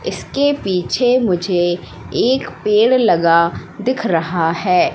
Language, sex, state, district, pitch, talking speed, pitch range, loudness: Hindi, female, Madhya Pradesh, Katni, 195 Hz, 110 wpm, 175-250 Hz, -16 LUFS